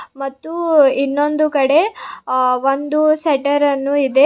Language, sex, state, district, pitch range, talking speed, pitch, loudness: Kannada, female, Karnataka, Bidar, 275-305 Hz, 100 wpm, 285 Hz, -16 LUFS